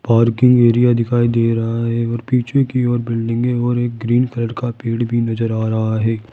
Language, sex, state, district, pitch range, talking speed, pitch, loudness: Hindi, male, Rajasthan, Jaipur, 115-120 Hz, 210 wpm, 115 Hz, -17 LUFS